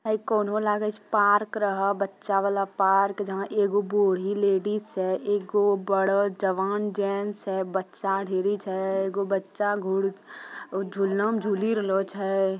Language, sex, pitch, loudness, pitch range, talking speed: Magahi, female, 200 Hz, -26 LUFS, 195-205 Hz, 150 wpm